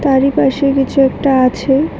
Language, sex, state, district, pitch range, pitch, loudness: Bengali, female, Tripura, West Tripura, 265-275 Hz, 270 Hz, -13 LUFS